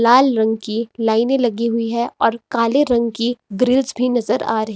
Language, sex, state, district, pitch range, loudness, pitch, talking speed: Hindi, female, Himachal Pradesh, Shimla, 225-245 Hz, -18 LUFS, 235 Hz, 200 wpm